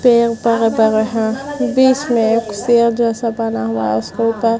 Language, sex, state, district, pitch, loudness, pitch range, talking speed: Hindi, female, Bihar, Vaishali, 230 Hz, -15 LUFS, 220-235 Hz, 195 wpm